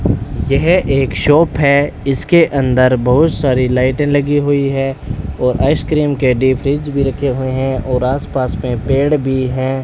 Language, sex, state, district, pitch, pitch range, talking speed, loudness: Hindi, male, Rajasthan, Bikaner, 135 Hz, 130-145 Hz, 165 wpm, -14 LUFS